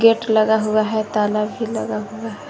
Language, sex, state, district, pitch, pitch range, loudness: Hindi, female, Jharkhand, Garhwa, 215 Hz, 215-225 Hz, -19 LUFS